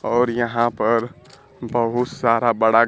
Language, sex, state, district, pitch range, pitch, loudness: Hindi, male, Bihar, Kaimur, 115-120 Hz, 120 Hz, -20 LUFS